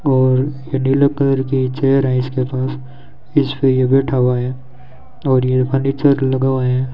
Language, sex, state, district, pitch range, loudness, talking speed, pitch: Hindi, male, Rajasthan, Bikaner, 130-135 Hz, -16 LUFS, 175 wpm, 130 Hz